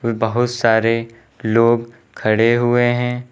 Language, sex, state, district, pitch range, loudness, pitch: Hindi, male, Uttar Pradesh, Lucknow, 115-120 Hz, -17 LUFS, 115 Hz